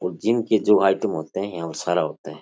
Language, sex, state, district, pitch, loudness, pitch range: Rajasthani, male, Rajasthan, Churu, 95 Hz, -22 LUFS, 85-105 Hz